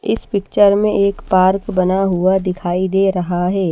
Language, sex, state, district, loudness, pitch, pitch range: Hindi, female, Bihar, Patna, -16 LUFS, 190 Hz, 185-200 Hz